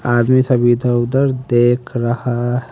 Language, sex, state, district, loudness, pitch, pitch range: Hindi, male, Haryana, Rohtak, -15 LUFS, 120 Hz, 120-125 Hz